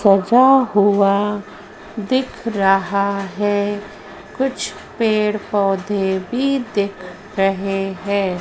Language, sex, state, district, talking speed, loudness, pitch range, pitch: Hindi, female, Madhya Pradesh, Dhar, 85 wpm, -18 LUFS, 195-215 Hz, 205 Hz